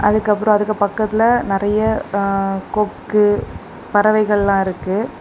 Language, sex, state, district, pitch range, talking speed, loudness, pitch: Tamil, female, Tamil Nadu, Kanyakumari, 200-215 Hz, 80 wpm, -17 LUFS, 210 Hz